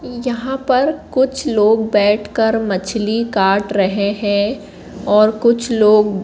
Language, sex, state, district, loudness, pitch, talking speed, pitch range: Hindi, female, Madhya Pradesh, Katni, -16 LUFS, 215 Hz, 115 wpm, 205-240 Hz